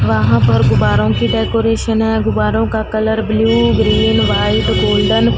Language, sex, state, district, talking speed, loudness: Hindi, female, Punjab, Fazilka, 155 wpm, -13 LUFS